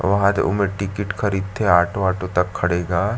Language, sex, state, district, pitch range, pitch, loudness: Chhattisgarhi, male, Chhattisgarh, Sarguja, 90-100 Hz, 95 Hz, -20 LUFS